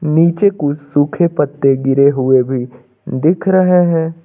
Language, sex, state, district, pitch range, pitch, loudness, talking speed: Hindi, male, Uttar Pradesh, Lucknow, 135-170 Hz, 145 Hz, -13 LUFS, 140 wpm